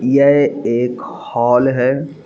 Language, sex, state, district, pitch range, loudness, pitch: Hindi, male, Chhattisgarh, Bilaspur, 125-140 Hz, -15 LUFS, 130 Hz